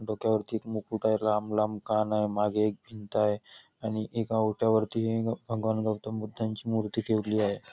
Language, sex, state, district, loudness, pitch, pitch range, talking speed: Marathi, male, Maharashtra, Nagpur, -29 LUFS, 110 Hz, 105-110 Hz, 165 wpm